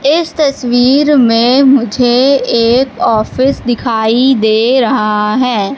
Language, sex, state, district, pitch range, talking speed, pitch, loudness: Hindi, female, Madhya Pradesh, Katni, 230-270 Hz, 105 wpm, 250 Hz, -10 LUFS